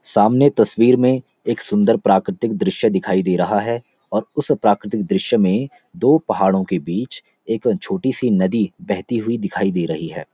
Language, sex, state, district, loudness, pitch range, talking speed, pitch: Hindi, male, Uttarakhand, Uttarkashi, -18 LUFS, 95-130 Hz, 175 wpm, 115 Hz